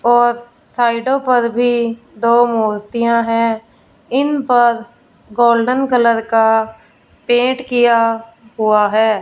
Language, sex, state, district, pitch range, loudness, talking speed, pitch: Hindi, female, Punjab, Fazilka, 225-240 Hz, -15 LUFS, 105 wpm, 235 Hz